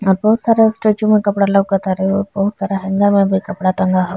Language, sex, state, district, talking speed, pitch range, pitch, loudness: Bhojpuri, female, Bihar, East Champaran, 230 wpm, 190-210 Hz, 195 Hz, -15 LUFS